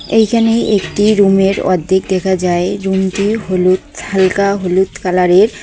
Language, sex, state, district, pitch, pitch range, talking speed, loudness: Bengali, female, West Bengal, Cooch Behar, 190 Hz, 185-205 Hz, 150 wpm, -13 LUFS